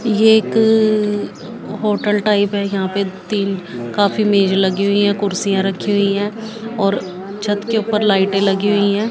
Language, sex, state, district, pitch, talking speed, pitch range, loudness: Hindi, female, Haryana, Jhajjar, 205 Hz, 165 wpm, 195-215 Hz, -16 LUFS